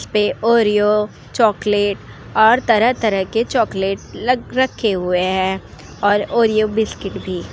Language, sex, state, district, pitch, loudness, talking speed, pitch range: Hindi, female, Uttar Pradesh, Jalaun, 210 Hz, -17 LUFS, 125 wpm, 195-230 Hz